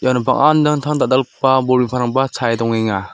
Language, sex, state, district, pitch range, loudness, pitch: Garo, male, Meghalaya, South Garo Hills, 120-135 Hz, -16 LUFS, 130 Hz